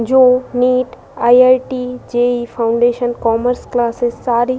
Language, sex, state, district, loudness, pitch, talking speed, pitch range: Hindi, female, Uttar Pradesh, Budaun, -14 LUFS, 245 Hz, 115 wpm, 240-255 Hz